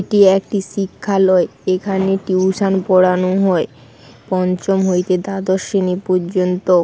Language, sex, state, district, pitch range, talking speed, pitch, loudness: Bengali, female, West Bengal, Paschim Medinipur, 180-195 Hz, 105 wpm, 185 Hz, -16 LUFS